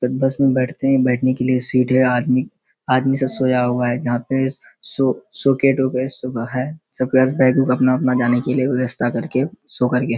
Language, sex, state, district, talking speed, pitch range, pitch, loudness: Hindi, male, Bihar, Kishanganj, 235 wpm, 125-130 Hz, 130 Hz, -18 LUFS